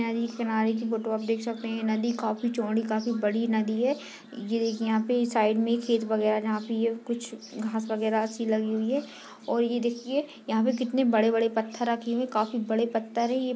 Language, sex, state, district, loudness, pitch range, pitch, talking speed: Hindi, female, Chhattisgarh, Kabirdham, -28 LUFS, 220-235 Hz, 225 Hz, 225 wpm